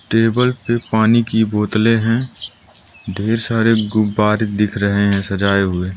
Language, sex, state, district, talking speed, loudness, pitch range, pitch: Hindi, male, Arunachal Pradesh, Lower Dibang Valley, 150 wpm, -16 LUFS, 100-115 Hz, 110 Hz